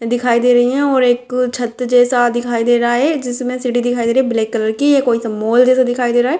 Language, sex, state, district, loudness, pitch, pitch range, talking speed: Hindi, female, Bihar, Gopalganj, -14 LUFS, 245 Hz, 240-250 Hz, 255 wpm